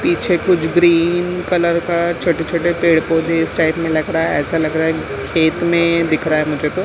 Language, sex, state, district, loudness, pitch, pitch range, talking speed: Hindi, female, Maharashtra, Mumbai Suburban, -16 LUFS, 165 Hz, 160-175 Hz, 210 wpm